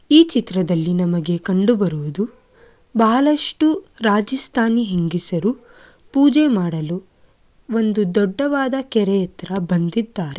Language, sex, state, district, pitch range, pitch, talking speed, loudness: Kannada, female, Karnataka, Mysore, 180-270 Hz, 220 Hz, 80 wpm, -18 LUFS